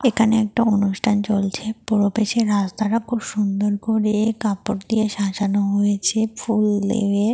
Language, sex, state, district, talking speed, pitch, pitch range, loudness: Bengali, female, Jharkhand, Jamtara, 125 wpm, 210 Hz, 205-220 Hz, -20 LUFS